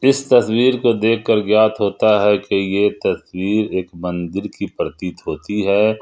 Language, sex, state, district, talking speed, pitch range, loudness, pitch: Hindi, male, Jharkhand, Ranchi, 160 wpm, 100-110 Hz, -17 LUFS, 105 Hz